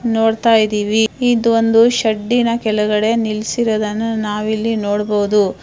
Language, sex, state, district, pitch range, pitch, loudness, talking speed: Kannada, female, Karnataka, Dharwad, 210-230 Hz, 220 Hz, -16 LUFS, 105 wpm